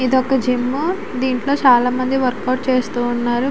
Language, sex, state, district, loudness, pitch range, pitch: Telugu, female, Andhra Pradesh, Visakhapatnam, -18 LUFS, 250-265 Hz, 255 Hz